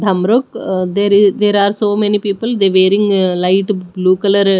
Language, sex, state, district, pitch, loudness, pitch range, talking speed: English, female, Odisha, Nuapada, 200 Hz, -13 LUFS, 185-205 Hz, 145 wpm